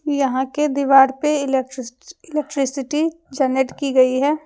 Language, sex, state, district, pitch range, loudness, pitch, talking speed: Hindi, female, Jharkhand, Deoghar, 265-300 Hz, -19 LUFS, 275 Hz, 120 wpm